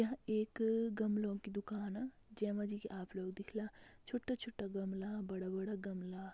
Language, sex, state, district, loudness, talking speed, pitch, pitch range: Garhwali, female, Uttarakhand, Tehri Garhwal, -42 LUFS, 140 wpm, 210 Hz, 195-220 Hz